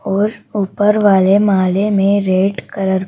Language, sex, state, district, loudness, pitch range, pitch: Hindi, female, Madhya Pradesh, Bhopal, -14 LUFS, 190-205 Hz, 200 Hz